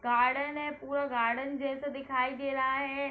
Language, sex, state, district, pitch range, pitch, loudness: Hindi, female, Uttar Pradesh, Hamirpur, 255-280 Hz, 275 Hz, -31 LUFS